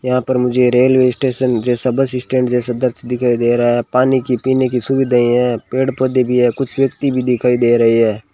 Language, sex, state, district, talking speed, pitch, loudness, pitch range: Hindi, male, Rajasthan, Bikaner, 225 wpm, 125 Hz, -15 LUFS, 120-130 Hz